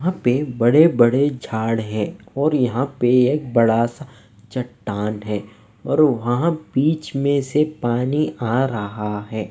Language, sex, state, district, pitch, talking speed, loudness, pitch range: Hindi, male, Odisha, Nuapada, 125 Hz, 140 wpm, -20 LUFS, 110-145 Hz